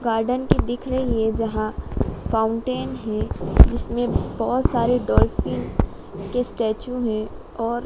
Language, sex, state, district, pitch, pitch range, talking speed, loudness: Hindi, female, Madhya Pradesh, Dhar, 235 Hz, 225-245 Hz, 120 wpm, -23 LUFS